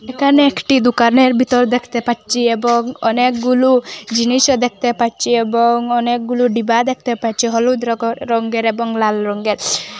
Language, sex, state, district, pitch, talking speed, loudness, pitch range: Bengali, female, Assam, Hailakandi, 240 Hz, 130 wpm, -15 LUFS, 230-250 Hz